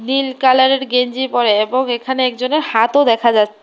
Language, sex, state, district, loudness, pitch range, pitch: Bengali, female, Tripura, West Tripura, -15 LUFS, 235-265 Hz, 255 Hz